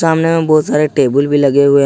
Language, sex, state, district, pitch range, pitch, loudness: Hindi, male, Jharkhand, Ranchi, 140-160 Hz, 145 Hz, -12 LUFS